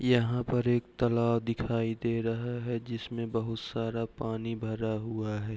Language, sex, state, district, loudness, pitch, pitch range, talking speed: Hindi, male, Bihar, Bhagalpur, -32 LUFS, 115 Hz, 115-120 Hz, 160 wpm